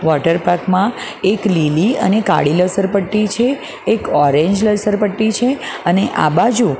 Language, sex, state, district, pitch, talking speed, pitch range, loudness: Gujarati, female, Gujarat, Valsad, 195 Hz, 140 wpm, 170-215 Hz, -15 LUFS